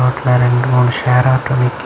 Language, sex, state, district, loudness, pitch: Tamil, male, Tamil Nadu, Kanyakumari, -13 LUFS, 125 Hz